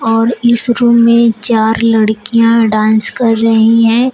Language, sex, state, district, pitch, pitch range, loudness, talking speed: Hindi, female, Uttar Pradesh, Shamli, 230 Hz, 225-235 Hz, -10 LUFS, 145 wpm